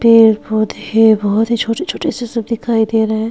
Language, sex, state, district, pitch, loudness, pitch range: Hindi, female, Uttar Pradesh, Hamirpur, 225 Hz, -14 LUFS, 220-230 Hz